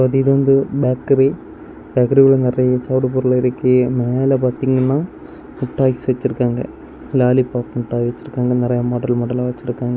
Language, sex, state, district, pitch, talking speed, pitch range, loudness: Tamil, male, Tamil Nadu, Kanyakumari, 125 Hz, 120 wpm, 125-135 Hz, -17 LUFS